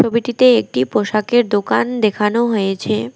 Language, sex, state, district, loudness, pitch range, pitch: Bengali, female, West Bengal, Alipurduar, -16 LUFS, 210-240 Hz, 215 Hz